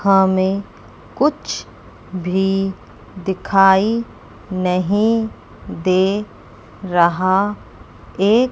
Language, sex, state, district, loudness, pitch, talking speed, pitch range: Hindi, female, Chandigarh, Chandigarh, -18 LUFS, 190 Hz, 65 wpm, 185-205 Hz